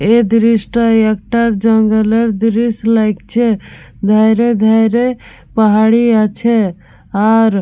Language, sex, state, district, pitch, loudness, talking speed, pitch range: Bengali, female, West Bengal, Purulia, 225 Hz, -12 LUFS, 95 wpm, 215-230 Hz